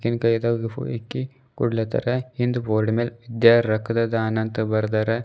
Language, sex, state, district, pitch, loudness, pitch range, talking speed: Kannada, male, Karnataka, Bidar, 115 Hz, -22 LUFS, 110-120 Hz, 105 wpm